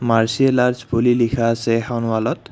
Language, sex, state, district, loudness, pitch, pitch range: Assamese, male, Assam, Kamrup Metropolitan, -18 LUFS, 120 Hz, 115-125 Hz